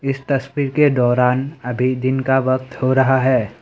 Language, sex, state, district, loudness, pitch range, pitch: Hindi, male, Assam, Sonitpur, -17 LUFS, 125-135 Hz, 130 Hz